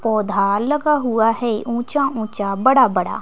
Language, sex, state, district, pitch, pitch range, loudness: Hindi, female, Bihar, West Champaran, 230 Hz, 210-265 Hz, -18 LUFS